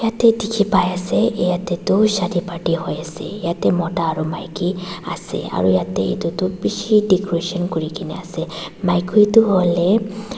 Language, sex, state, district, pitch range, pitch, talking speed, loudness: Nagamese, female, Nagaland, Dimapur, 170-200 Hz, 180 Hz, 135 wpm, -19 LUFS